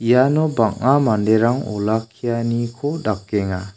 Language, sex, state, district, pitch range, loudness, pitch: Garo, male, Meghalaya, South Garo Hills, 105-130 Hz, -19 LUFS, 115 Hz